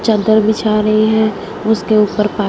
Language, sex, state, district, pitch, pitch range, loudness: Hindi, female, Punjab, Fazilka, 215 Hz, 210-220 Hz, -14 LUFS